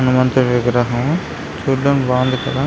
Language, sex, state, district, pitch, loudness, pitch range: Telugu, male, Andhra Pradesh, Visakhapatnam, 130 Hz, -17 LUFS, 125-135 Hz